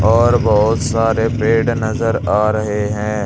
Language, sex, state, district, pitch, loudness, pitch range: Hindi, male, Uttar Pradesh, Saharanpur, 110 Hz, -15 LUFS, 105-115 Hz